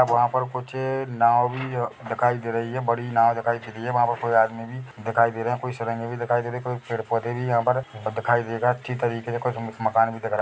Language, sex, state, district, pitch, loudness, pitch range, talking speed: Hindi, male, Chhattisgarh, Bilaspur, 120 Hz, -24 LUFS, 115-125 Hz, 275 wpm